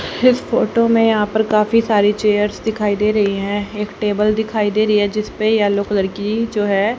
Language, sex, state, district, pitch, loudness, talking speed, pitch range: Hindi, female, Haryana, Rohtak, 210 Hz, -17 LUFS, 215 wpm, 205-220 Hz